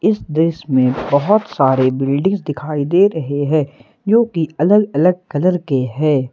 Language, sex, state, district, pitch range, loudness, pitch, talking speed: Hindi, male, Jharkhand, Ranchi, 135-180 Hz, -16 LUFS, 155 Hz, 160 wpm